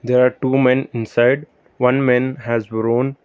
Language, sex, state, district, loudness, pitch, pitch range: English, male, Karnataka, Bangalore, -17 LUFS, 125 Hz, 120-130 Hz